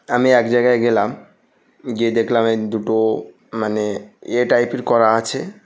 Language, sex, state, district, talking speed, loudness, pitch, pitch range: Bengali, male, West Bengal, North 24 Parganas, 140 wpm, -18 LUFS, 115 Hz, 110-120 Hz